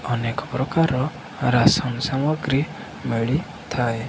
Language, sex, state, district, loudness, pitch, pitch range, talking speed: Odia, male, Odisha, Khordha, -22 LUFS, 130 Hz, 120-150 Hz, 75 wpm